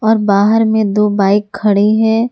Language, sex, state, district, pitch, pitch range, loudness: Hindi, female, Jharkhand, Ranchi, 210 Hz, 205-220 Hz, -12 LUFS